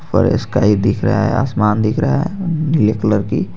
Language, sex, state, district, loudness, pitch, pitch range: Hindi, male, Jharkhand, Garhwa, -16 LUFS, 110 Hz, 105-145 Hz